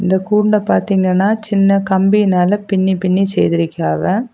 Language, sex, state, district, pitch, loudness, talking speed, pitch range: Tamil, female, Tamil Nadu, Kanyakumari, 195 Hz, -14 LUFS, 110 wpm, 185-205 Hz